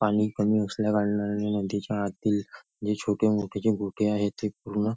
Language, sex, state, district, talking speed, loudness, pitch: Marathi, male, Maharashtra, Nagpur, 135 wpm, -27 LUFS, 105 Hz